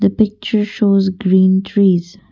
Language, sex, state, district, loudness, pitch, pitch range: English, female, Assam, Kamrup Metropolitan, -14 LUFS, 200 Hz, 190-205 Hz